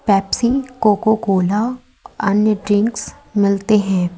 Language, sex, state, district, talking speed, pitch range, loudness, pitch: Hindi, female, Madhya Pradesh, Umaria, 100 wpm, 200-220 Hz, -17 LUFS, 210 Hz